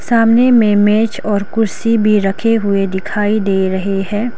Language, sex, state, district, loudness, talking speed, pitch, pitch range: Hindi, female, Arunachal Pradesh, Lower Dibang Valley, -14 LUFS, 165 wpm, 210 Hz, 195-225 Hz